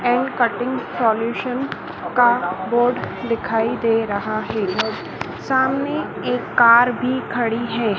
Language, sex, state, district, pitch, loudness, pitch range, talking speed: Hindi, female, Madhya Pradesh, Dhar, 240 Hz, -20 LUFS, 225-250 Hz, 115 wpm